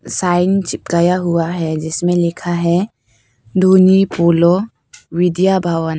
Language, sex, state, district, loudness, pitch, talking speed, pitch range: Hindi, female, Arunachal Pradesh, Papum Pare, -15 LUFS, 175 Hz, 110 wpm, 165-185 Hz